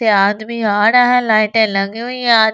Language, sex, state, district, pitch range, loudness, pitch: Hindi, female, Delhi, New Delhi, 210-235 Hz, -14 LUFS, 220 Hz